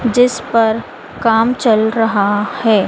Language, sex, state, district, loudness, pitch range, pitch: Hindi, female, Madhya Pradesh, Dhar, -14 LUFS, 215-235 Hz, 225 Hz